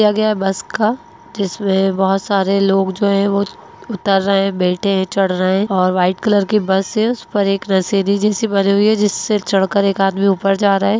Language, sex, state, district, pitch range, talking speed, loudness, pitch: Hindi, female, Bihar, Lakhisarai, 195-210 Hz, 205 wpm, -16 LUFS, 195 Hz